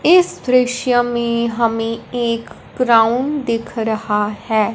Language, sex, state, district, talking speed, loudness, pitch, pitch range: Hindi, female, Punjab, Fazilka, 115 wpm, -17 LUFS, 235 Hz, 225-245 Hz